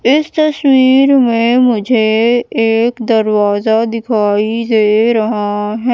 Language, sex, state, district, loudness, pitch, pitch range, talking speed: Hindi, female, Madhya Pradesh, Katni, -12 LUFS, 230 Hz, 215-245 Hz, 100 wpm